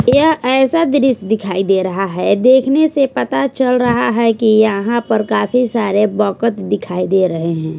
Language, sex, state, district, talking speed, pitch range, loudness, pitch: Hindi, female, Bihar, West Champaran, 170 wpm, 195-255 Hz, -14 LUFS, 220 Hz